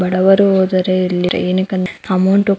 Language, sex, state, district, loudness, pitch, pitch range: Kannada, female, Karnataka, Mysore, -14 LUFS, 185 Hz, 185-195 Hz